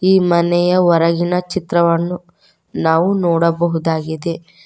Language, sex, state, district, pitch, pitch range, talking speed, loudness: Kannada, female, Karnataka, Koppal, 170 Hz, 170-180 Hz, 75 wpm, -16 LUFS